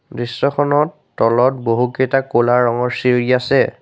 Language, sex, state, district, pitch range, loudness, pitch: Assamese, male, Assam, Sonitpur, 120-135 Hz, -16 LUFS, 125 Hz